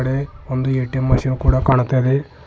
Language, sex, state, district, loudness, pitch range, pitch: Kannada, male, Karnataka, Bidar, -18 LUFS, 130-135 Hz, 130 Hz